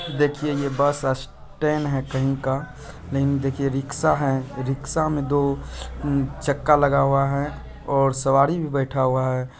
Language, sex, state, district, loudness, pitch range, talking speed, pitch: Hindi, male, Bihar, Araria, -22 LUFS, 135-145 Hz, 150 wpm, 140 Hz